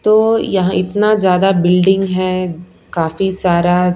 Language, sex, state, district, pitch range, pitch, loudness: Hindi, female, Punjab, Pathankot, 180-195 Hz, 185 Hz, -14 LUFS